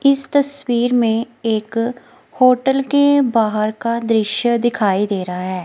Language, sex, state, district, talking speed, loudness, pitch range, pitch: Hindi, female, Himachal Pradesh, Shimla, 140 wpm, -17 LUFS, 215-260 Hz, 235 Hz